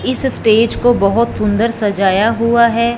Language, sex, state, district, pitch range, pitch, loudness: Hindi, female, Punjab, Fazilka, 210-235 Hz, 230 Hz, -13 LUFS